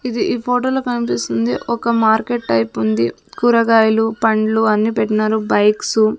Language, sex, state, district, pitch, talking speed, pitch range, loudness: Telugu, female, Andhra Pradesh, Sri Satya Sai, 220 Hz, 135 wpm, 210-235 Hz, -16 LUFS